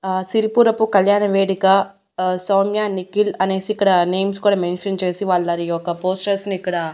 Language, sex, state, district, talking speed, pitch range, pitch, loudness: Telugu, female, Andhra Pradesh, Annamaya, 155 wpm, 185-200 Hz, 195 Hz, -18 LUFS